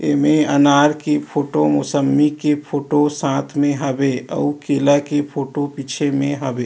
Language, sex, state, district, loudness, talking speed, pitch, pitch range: Chhattisgarhi, male, Chhattisgarh, Rajnandgaon, -18 LUFS, 160 wpm, 145 Hz, 140-145 Hz